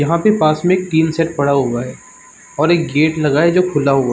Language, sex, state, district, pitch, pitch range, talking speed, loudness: Hindi, male, Uttar Pradesh, Varanasi, 155 Hz, 140-170 Hz, 275 wpm, -15 LUFS